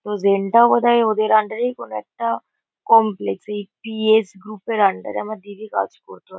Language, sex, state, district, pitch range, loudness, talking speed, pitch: Bengali, female, West Bengal, Kolkata, 205-230 Hz, -19 LUFS, 205 wpm, 215 Hz